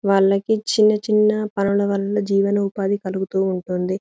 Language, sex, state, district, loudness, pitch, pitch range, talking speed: Telugu, female, Telangana, Karimnagar, -19 LUFS, 200 Hz, 195-210 Hz, 120 wpm